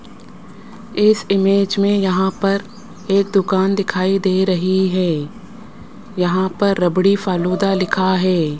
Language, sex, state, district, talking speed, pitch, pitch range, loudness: Hindi, male, Rajasthan, Jaipur, 120 wpm, 195 Hz, 185-205 Hz, -17 LUFS